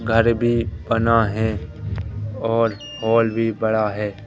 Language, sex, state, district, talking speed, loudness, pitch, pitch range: Hindi, male, Madhya Pradesh, Katni, 125 wpm, -21 LUFS, 110 Hz, 105-115 Hz